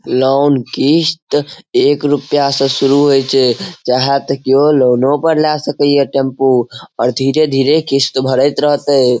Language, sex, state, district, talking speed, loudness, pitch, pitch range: Maithili, male, Bihar, Saharsa, 145 wpm, -13 LUFS, 140 Hz, 130-145 Hz